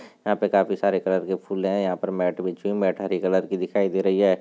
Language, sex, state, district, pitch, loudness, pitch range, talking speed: Hindi, male, Rajasthan, Churu, 95 Hz, -24 LUFS, 95-100 Hz, 285 wpm